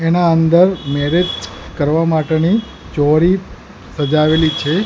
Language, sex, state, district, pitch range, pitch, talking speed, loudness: Gujarati, male, Gujarat, Gandhinagar, 155-175 Hz, 160 Hz, 100 wpm, -15 LUFS